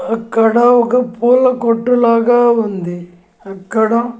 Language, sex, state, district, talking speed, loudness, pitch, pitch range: Telugu, female, Andhra Pradesh, Annamaya, 100 wpm, -13 LUFS, 230 Hz, 220-240 Hz